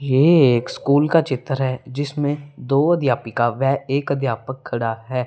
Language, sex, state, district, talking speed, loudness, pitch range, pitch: Hindi, female, Punjab, Fazilka, 160 wpm, -19 LUFS, 130-145 Hz, 135 Hz